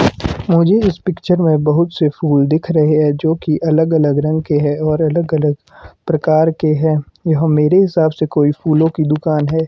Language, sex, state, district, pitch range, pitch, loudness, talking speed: Hindi, male, Himachal Pradesh, Shimla, 150-165 Hz, 155 Hz, -14 LUFS, 200 wpm